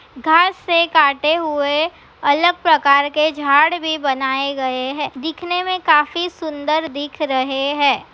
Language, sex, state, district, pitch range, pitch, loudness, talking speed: Hindi, female, Bihar, Begusarai, 280-330 Hz, 300 Hz, -17 LUFS, 140 wpm